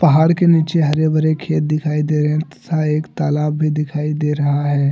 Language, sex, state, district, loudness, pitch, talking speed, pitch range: Hindi, male, Jharkhand, Deoghar, -17 LUFS, 155 Hz, 220 wpm, 150-155 Hz